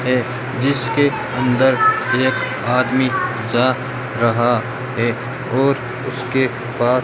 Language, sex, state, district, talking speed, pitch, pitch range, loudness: Hindi, male, Rajasthan, Bikaner, 100 wpm, 130 Hz, 125-130 Hz, -18 LUFS